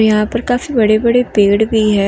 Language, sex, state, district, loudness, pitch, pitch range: Hindi, female, Jharkhand, Deoghar, -13 LUFS, 220 Hz, 210-240 Hz